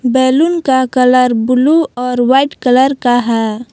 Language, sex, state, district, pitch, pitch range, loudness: Hindi, female, Jharkhand, Palamu, 255 Hz, 245-270 Hz, -12 LUFS